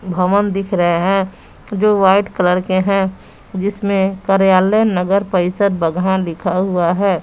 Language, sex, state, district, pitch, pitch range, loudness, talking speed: Hindi, female, Bihar, West Champaran, 190 Hz, 180-200 Hz, -15 LUFS, 140 wpm